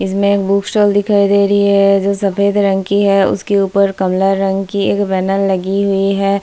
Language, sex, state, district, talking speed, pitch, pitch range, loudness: Hindi, female, Bihar, Kishanganj, 215 wpm, 200 Hz, 195-200 Hz, -13 LUFS